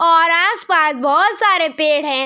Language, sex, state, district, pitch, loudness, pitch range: Hindi, female, Bihar, Araria, 330 Hz, -14 LUFS, 300-390 Hz